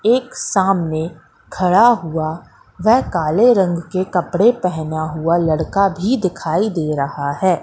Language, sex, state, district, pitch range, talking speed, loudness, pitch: Hindi, female, Madhya Pradesh, Katni, 160-195 Hz, 135 wpm, -17 LUFS, 180 Hz